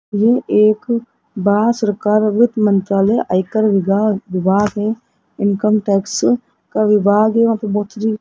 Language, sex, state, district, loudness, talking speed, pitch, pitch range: Hindi, male, Rajasthan, Jaipur, -16 LUFS, 145 wpm, 210 Hz, 205-220 Hz